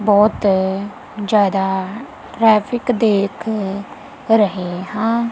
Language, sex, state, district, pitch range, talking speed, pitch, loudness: Punjabi, female, Punjab, Kapurthala, 195-225 Hz, 70 wpm, 210 Hz, -17 LUFS